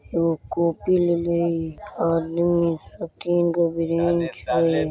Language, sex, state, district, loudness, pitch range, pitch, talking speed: Bajjika, male, Bihar, Vaishali, -23 LUFS, 165-170 Hz, 170 Hz, 120 wpm